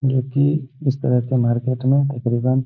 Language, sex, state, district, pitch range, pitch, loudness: Hindi, male, Bihar, Gaya, 125-135 Hz, 130 Hz, -20 LUFS